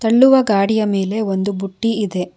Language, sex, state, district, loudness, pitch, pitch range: Kannada, female, Karnataka, Bangalore, -16 LUFS, 205 Hz, 195-225 Hz